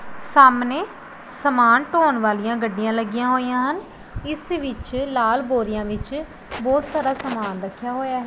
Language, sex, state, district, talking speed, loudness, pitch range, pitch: Punjabi, female, Punjab, Pathankot, 130 wpm, -20 LUFS, 230-280 Hz, 255 Hz